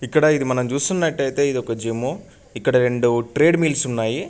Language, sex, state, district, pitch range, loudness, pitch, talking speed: Telugu, male, Andhra Pradesh, Anantapur, 120-155 Hz, -20 LUFS, 130 Hz, 180 wpm